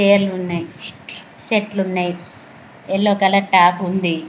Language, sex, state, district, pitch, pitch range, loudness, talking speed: Telugu, female, Andhra Pradesh, Guntur, 185 Hz, 175-200 Hz, -17 LUFS, 85 wpm